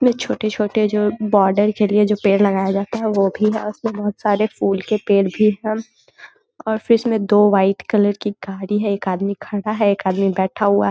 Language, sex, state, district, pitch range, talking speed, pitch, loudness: Hindi, female, Bihar, Muzaffarpur, 195-215 Hz, 225 wpm, 210 Hz, -18 LUFS